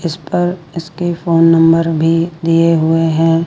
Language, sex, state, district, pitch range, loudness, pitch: Hindi, female, Rajasthan, Jaipur, 165-170 Hz, -13 LUFS, 165 Hz